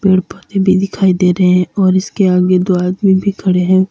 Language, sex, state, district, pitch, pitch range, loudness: Hindi, female, Uttar Pradesh, Lalitpur, 185 Hz, 180-190 Hz, -13 LUFS